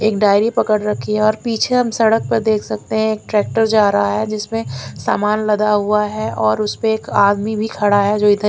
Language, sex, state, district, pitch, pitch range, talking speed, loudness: Hindi, female, Punjab, Fazilka, 210 Hz, 205-220 Hz, 235 wpm, -16 LUFS